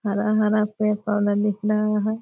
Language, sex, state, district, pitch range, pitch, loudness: Hindi, female, Bihar, Purnia, 210-215 Hz, 210 Hz, -22 LUFS